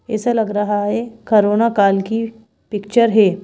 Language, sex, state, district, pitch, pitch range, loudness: Hindi, female, Madhya Pradesh, Bhopal, 220 Hz, 205-230 Hz, -16 LUFS